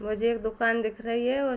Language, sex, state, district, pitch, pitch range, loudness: Hindi, female, Jharkhand, Sahebganj, 230 Hz, 220-235 Hz, -27 LUFS